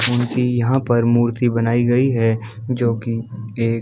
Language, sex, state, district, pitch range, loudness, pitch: Hindi, male, Chhattisgarh, Balrampur, 115-120 Hz, -18 LUFS, 120 Hz